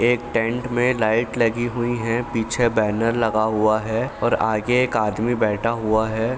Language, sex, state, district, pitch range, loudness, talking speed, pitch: Hindi, male, Bihar, Saran, 110-120 Hz, -21 LUFS, 180 wpm, 115 Hz